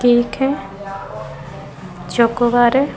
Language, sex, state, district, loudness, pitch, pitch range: Hindi, female, Bihar, Vaishali, -17 LUFS, 200 Hz, 170-240 Hz